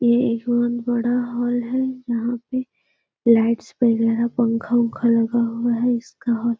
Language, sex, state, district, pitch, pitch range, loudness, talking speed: Hindi, female, Bihar, Gaya, 235 Hz, 230-240 Hz, -21 LUFS, 145 wpm